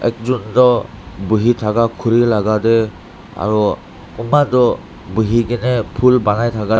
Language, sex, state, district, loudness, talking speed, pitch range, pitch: Nagamese, male, Nagaland, Dimapur, -15 LUFS, 130 wpm, 105-120 Hz, 115 Hz